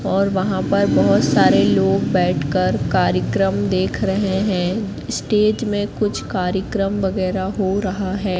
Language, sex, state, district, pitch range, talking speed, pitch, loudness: Hindi, female, Madhya Pradesh, Katni, 190-205 Hz, 135 wpm, 195 Hz, -18 LUFS